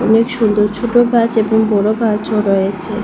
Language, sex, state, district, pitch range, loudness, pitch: Bengali, female, Assam, Hailakandi, 210-230 Hz, -14 LUFS, 220 Hz